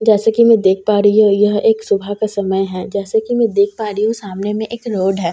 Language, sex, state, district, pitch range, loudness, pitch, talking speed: Hindi, female, Bihar, Katihar, 200-220 Hz, -15 LUFS, 205 Hz, 315 wpm